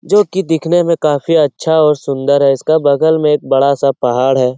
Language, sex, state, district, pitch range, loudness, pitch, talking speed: Hindi, male, Bihar, Lakhisarai, 140-160 Hz, -12 LUFS, 150 Hz, 220 wpm